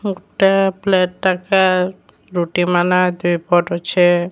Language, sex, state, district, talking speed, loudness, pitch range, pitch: Odia, female, Odisha, Sambalpur, 85 wpm, -16 LUFS, 175-190 Hz, 180 Hz